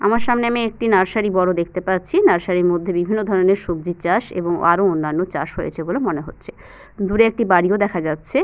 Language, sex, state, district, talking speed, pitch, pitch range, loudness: Bengali, female, West Bengal, Purulia, 200 wpm, 185 Hz, 175-215 Hz, -18 LUFS